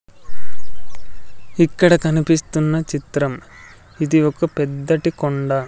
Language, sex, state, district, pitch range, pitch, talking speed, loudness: Telugu, male, Andhra Pradesh, Sri Satya Sai, 140-160 Hz, 155 Hz, 75 wpm, -18 LUFS